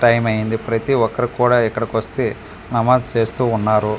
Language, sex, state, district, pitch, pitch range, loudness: Telugu, male, Andhra Pradesh, Manyam, 115 Hz, 110-125 Hz, -18 LUFS